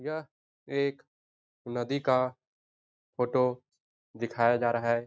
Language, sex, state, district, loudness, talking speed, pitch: Hindi, male, Bihar, Jahanabad, -30 LUFS, 105 wpm, 120 Hz